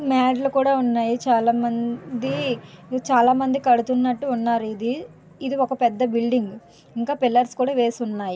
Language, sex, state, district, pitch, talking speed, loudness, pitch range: Telugu, female, Andhra Pradesh, Visakhapatnam, 245 Hz, 110 wpm, -22 LUFS, 235-260 Hz